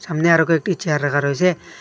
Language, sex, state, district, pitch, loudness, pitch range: Bengali, male, Assam, Hailakandi, 165 Hz, -18 LUFS, 150-170 Hz